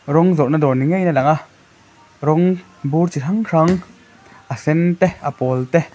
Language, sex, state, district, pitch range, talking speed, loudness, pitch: Mizo, male, Mizoram, Aizawl, 145-175 Hz, 180 wpm, -17 LUFS, 160 Hz